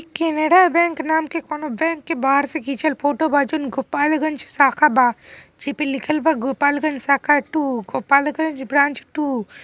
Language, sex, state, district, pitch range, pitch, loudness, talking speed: Bhojpuri, female, Bihar, East Champaran, 275-315 Hz, 295 Hz, -19 LUFS, 150 wpm